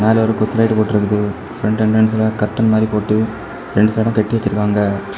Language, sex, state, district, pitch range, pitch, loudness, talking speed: Tamil, male, Tamil Nadu, Kanyakumari, 105-110 Hz, 110 Hz, -16 LUFS, 160 wpm